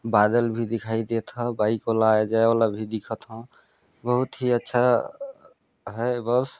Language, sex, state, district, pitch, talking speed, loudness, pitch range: Hindi, male, Chhattisgarh, Balrampur, 115 Hz, 170 wpm, -24 LUFS, 110-125 Hz